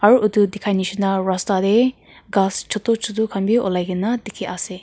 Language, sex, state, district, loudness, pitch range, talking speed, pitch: Nagamese, female, Nagaland, Kohima, -20 LUFS, 190-220 Hz, 185 wpm, 205 Hz